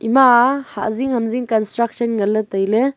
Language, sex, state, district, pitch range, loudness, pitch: Wancho, female, Arunachal Pradesh, Longding, 215-250 Hz, -17 LUFS, 235 Hz